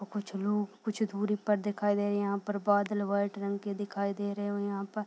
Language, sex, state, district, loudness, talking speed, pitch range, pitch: Hindi, female, Bihar, Purnia, -32 LUFS, 270 wpm, 200-205 Hz, 205 Hz